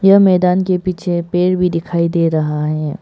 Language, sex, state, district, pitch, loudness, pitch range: Hindi, female, Arunachal Pradesh, Papum Pare, 175 Hz, -15 LUFS, 165-185 Hz